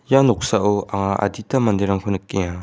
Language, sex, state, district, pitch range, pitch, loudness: Garo, male, Meghalaya, West Garo Hills, 100-115 Hz, 100 Hz, -20 LUFS